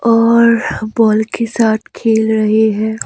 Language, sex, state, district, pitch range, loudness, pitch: Hindi, male, Himachal Pradesh, Shimla, 220-230 Hz, -13 LUFS, 220 Hz